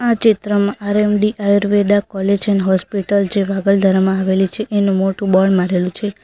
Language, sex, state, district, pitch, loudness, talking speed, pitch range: Gujarati, female, Gujarat, Valsad, 200 Hz, -16 LUFS, 135 wpm, 190-205 Hz